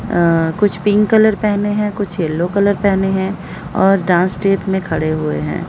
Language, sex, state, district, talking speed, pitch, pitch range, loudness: Hindi, female, Odisha, Sambalpur, 190 wpm, 190 Hz, 170-205 Hz, -15 LUFS